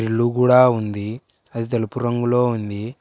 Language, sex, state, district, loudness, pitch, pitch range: Telugu, male, Telangana, Hyderabad, -19 LUFS, 120 Hz, 110-125 Hz